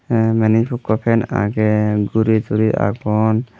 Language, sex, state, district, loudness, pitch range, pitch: Chakma, male, Tripura, Unakoti, -17 LUFS, 105-115 Hz, 110 Hz